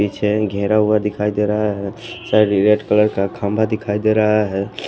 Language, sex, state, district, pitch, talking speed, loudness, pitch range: Hindi, male, Punjab, Pathankot, 105 Hz, 195 wpm, -17 LUFS, 100-105 Hz